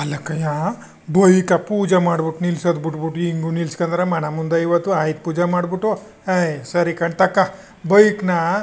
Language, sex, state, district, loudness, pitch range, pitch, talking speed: Kannada, male, Karnataka, Chamarajanagar, -19 LUFS, 160-190 Hz, 175 Hz, 140 wpm